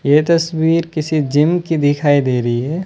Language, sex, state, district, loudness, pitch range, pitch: Hindi, male, Rajasthan, Bikaner, -15 LUFS, 145-165 Hz, 155 Hz